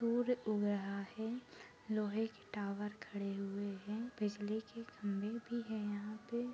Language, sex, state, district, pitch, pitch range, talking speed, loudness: Hindi, female, Maharashtra, Aurangabad, 210 Hz, 205-230 Hz, 155 wpm, -41 LUFS